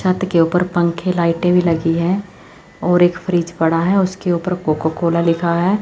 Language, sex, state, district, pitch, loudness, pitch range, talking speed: Hindi, female, Chandigarh, Chandigarh, 175 Hz, -17 LUFS, 170-180 Hz, 195 wpm